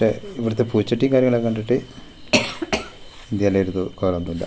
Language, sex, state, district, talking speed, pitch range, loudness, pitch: Malayalam, male, Kerala, Wayanad, 65 wpm, 95-125 Hz, -21 LUFS, 110 Hz